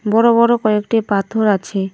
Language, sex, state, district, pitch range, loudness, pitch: Bengali, female, West Bengal, Cooch Behar, 200-225 Hz, -15 LUFS, 215 Hz